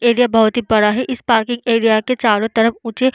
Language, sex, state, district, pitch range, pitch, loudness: Hindi, female, Bihar, Vaishali, 220-245 Hz, 230 Hz, -15 LUFS